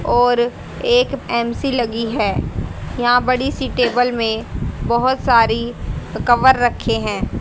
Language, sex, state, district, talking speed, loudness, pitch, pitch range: Hindi, female, Haryana, Charkhi Dadri, 120 wpm, -17 LUFS, 245 Hz, 235-255 Hz